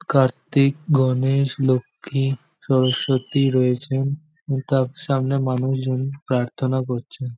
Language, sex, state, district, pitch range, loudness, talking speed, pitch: Bengali, male, West Bengal, Jhargram, 130-140 Hz, -21 LUFS, 90 wpm, 135 Hz